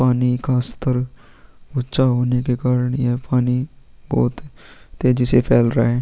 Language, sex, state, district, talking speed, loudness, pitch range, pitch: Hindi, male, Chhattisgarh, Sukma, 150 wpm, -19 LUFS, 125-130 Hz, 125 Hz